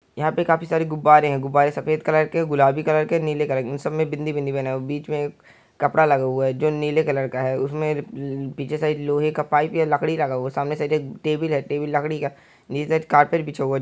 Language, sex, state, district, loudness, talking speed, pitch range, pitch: Hindi, male, Uttar Pradesh, Hamirpur, -22 LUFS, 275 wpm, 140-155 Hz, 150 Hz